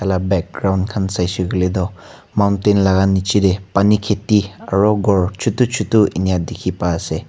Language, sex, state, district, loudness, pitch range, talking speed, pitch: Nagamese, male, Nagaland, Kohima, -17 LUFS, 95-105 Hz, 150 wpm, 95 Hz